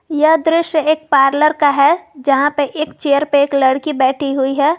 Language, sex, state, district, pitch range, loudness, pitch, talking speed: Hindi, female, Jharkhand, Garhwa, 275-310 Hz, -14 LUFS, 290 Hz, 200 wpm